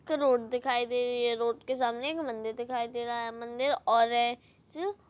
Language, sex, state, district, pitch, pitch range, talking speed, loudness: Hindi, female, Chhattisgarh, Rajnandgaon, 240 Hz, 235-255 Hz, 210 wpm, -30 LUFS